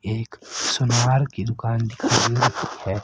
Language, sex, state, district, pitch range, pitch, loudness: Hindi, female, Haryana, Rohtak, 110-120 Hz, 115 Hz, -22 LUFS